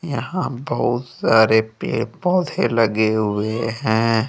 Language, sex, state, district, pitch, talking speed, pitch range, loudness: Hindi, male, Jharkhand, Deoghar, 115 Hz, 110 wpm, 110-135 Hz, -19 LUFS